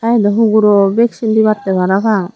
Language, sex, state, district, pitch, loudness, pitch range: Chakma, female, Tripura, Dhalai, 215 Hz, -12 LUFS, 195-225 Hz